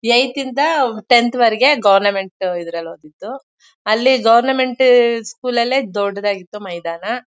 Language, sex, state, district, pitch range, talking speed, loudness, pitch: Kannada, female, Karnataka, Mysore, 200-260 Hz, 105 wpm, -15 LUFS, 235 Hz